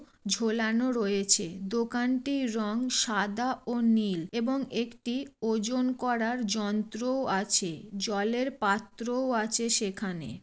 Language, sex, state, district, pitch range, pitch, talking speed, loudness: Bengali, female, West Bengal, Jalpaiguri, 205-245 Hz, 225 Hz, 100 wpm, -29 LUFS